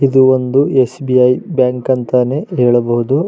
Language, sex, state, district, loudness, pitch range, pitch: Kannada, male, Karnataka, Raichur, -13 LUFS, 125-135 Hz, 130 Hz